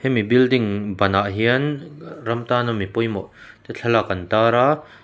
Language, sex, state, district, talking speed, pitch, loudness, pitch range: Mizo, male, Mizoram, Aizawl, 165 wpm, 115 Hz, -20 LUFS, 105-130 Hz